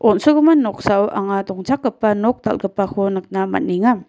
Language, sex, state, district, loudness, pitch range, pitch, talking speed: Garo, female, Meghalaya, West Garo Hills, -18 LUFS, 195-245 Hz, 205 Hz, 115 wpm